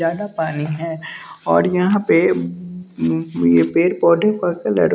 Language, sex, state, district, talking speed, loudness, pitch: Hindi, male, Bihar, West Champaran, 155 wpm, -18 LUFS, 165 Hz